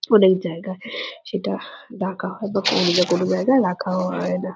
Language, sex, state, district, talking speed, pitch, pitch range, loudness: Bengali, female, West Bengal, Purulia, 170 wpm, 185 Hz, 180-205 Hz, -21 LUFS